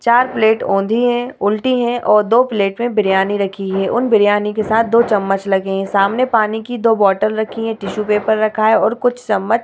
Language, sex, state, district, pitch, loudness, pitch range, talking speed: Hindi, female, Bihar, Vaishali, 215 Hz, -15 LUFS, 200-235 Hz, 235 wpm